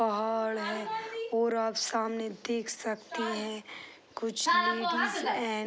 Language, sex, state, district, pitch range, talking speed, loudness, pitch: Hindi, female, Bihar, East Champaran, 220-230 Hz, 115 wpm, -31 LUFS, 225 Hz